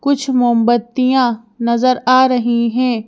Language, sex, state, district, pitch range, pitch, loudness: Hindi, female, Madhya Pradesh, Bhopal, 235-255 Hz, 245 Hz, -14 LUFS